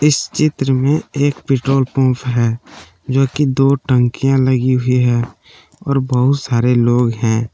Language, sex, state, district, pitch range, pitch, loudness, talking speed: Hindi, male, Jharkhand, Palamu, 125-135 Hz, 130 Hz, -15 LUFS, 145 wpm